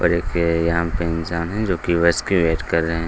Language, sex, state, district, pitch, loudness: Hindi, male, Bihar, Gaya, 85 Hz, -20 LUFS